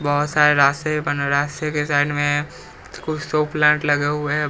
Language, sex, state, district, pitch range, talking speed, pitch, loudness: Hindi, female, Bihar, Patna, 145-150 Hz, 185 wpm, 150 Hz, -19 LUFS